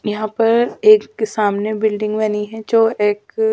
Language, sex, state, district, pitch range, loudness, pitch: Hindi, female, Bihar, Kaimur, 210-230 Hz, -16 LUFS, 215 Hz